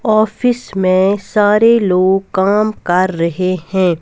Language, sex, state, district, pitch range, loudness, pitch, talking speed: Hindi, female, Punjab, Kapurthala, 185-215 Hz, -14 LUFS, 190 Hz, 120 wpm